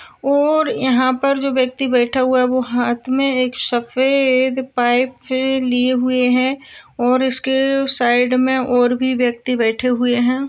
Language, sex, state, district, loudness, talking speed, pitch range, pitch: Hindi, female, Maharashtra, Sindhudurg, -17 LUFS, 150 wpm, 245-265 Hz, 255 Hz